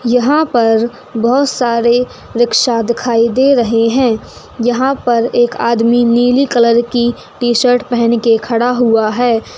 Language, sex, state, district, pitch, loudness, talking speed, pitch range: Hindi, female, Uttar Pradesh, Etah, 240 Hz, -12 LUFS, 130 wpm, 235-245 Hz